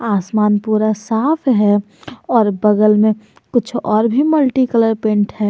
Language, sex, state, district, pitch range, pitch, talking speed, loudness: Hindi, male, Jharkhand, Garhwa, 210-235 Hz, 215 Hz, 155 wpm, -15 LUFS